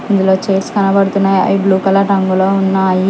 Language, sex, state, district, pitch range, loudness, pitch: Telugu, male, Telangana, Hyderabad, 190-195 Hz, -12 LUFS, 195 Hz